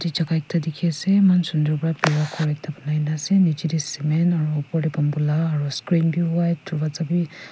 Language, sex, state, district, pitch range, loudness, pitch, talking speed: Nagamese, female, Nagaland, Kohima, 150-170 Hz, -22 LUFS, 160 Hz, 200 wpm